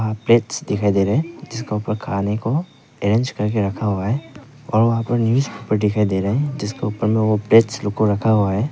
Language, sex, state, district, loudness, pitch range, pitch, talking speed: Hindi, male, Arunachal Pradesh, Papum Pare, -19 LUFS, 105-120 Hz, 110 Hz, 215 wpm